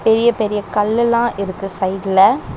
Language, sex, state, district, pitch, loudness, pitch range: Tamil, female, Tamil Nadu, Chennai, 210 Hz, -16 LUFS, 195-235 Hz